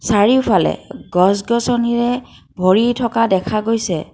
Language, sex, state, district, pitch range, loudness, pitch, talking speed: Assamese, female, Assam, Kamrup Metropolitan, 190-235 Hz, -16 LUFS, 225 Hz, 85 wpm